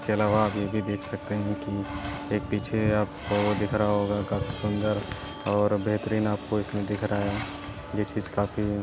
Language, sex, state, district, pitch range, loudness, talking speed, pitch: Hindi, male, Uttar Pradesh, Deoria, 100-105 Hz, -28 LUFS, 195 wpm, 105 Hz